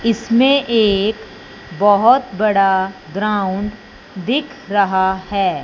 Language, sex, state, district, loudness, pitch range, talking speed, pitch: Hindi, male, Punjab, Fazilka, -16 LUFS, 195-230 Hz, 85 wpm, 205 Hz